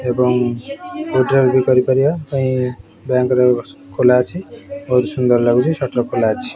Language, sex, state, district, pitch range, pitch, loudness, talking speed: Odia, male, Odisha, Khordha, 125-135 Hz, 125 Hz, -16 LUFS, 145 wpm